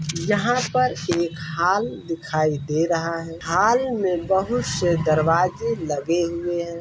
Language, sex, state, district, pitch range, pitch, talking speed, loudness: Hindi, male, Uttar Pradesh, Varanasi, 160-190 Hz, 170 Hz, 160 wpm, -22 LUFS